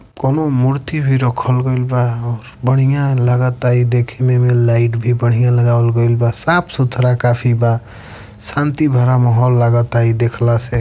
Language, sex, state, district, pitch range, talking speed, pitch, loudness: Bhojpuri, male, Uttar Pradesh, Varanasi, 120-125 Hz, 160 wpm, 125 Hz, -14 LUFS